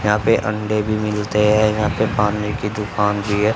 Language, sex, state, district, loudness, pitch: Hindi, male, Haryana, Charkhi Dadri, -19 LUFS, 105 Hz